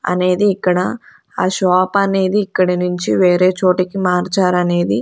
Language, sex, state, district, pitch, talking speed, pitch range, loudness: Telugu, female, Andhra Pradesh, Sri Satya Sai, 185 Hz, 130 wpm, 180-190 Hz, -15 LUFS